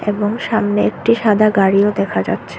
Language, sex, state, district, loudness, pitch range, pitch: Bengali, female, Tripura, Unakoti, -15 LUFS, 195-210 Hz, 205 Hz